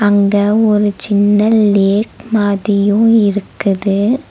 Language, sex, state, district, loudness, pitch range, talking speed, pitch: Tamil, female, Tamil Nadu, Nilgiris, -12 LUFS, 200-215 Hz, 85 wpm, 205 Hz